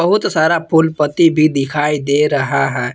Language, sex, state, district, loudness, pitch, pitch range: Hindi, male, Jharkhand, Palamu, -14 LUFS, 150 Hz, 145-160 Hz